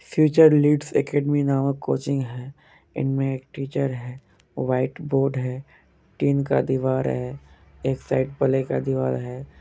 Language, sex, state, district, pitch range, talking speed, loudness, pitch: Hindi, male, Bihar, Kishanganj, 120-140 Hz, 145 wpm, -23 LUFS, 135 Hz